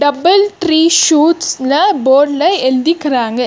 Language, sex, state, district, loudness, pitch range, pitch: Tamil, female, Karnataka, Bangalore, -11 LUFS, 270-345 Hz, 310 Hz